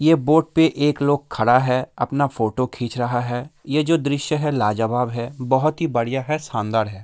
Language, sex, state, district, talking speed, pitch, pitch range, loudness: Hindi, male, Bihar, Kishanganj, 220 wpm, 130 Hz, 120-150 Hz, -20 LUFS